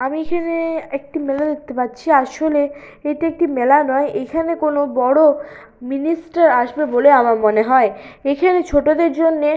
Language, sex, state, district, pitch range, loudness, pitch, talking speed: Bengali, female, West Bengal, Purulia, 275-325 Hz, -17 LUFS, 295 Hz, 145 wpm